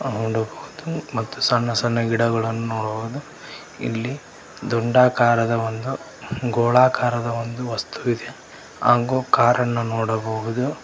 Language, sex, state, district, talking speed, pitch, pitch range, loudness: Kannada, male, Karnataka, Koppal, 90 wpm, 120 Hz, 115-125 Hz, -21 LUFS